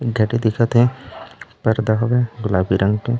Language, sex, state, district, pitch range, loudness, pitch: Chhattisgarhi, male, Chhattisgarh, Raigarh, 110-120 Hz, -18 LUFS, 115 Hz